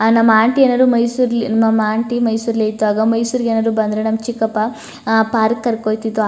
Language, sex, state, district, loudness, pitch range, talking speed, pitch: Kannada, female, Karnataka, Chamarajanagar, -16 LUFS, 220-235 Hz, 170 wpm, 225 Hz